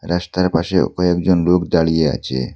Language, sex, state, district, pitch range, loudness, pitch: Bengali, male, Assam, Hailakandi, 80-90 Hz, -17 LUFS, 85 Hz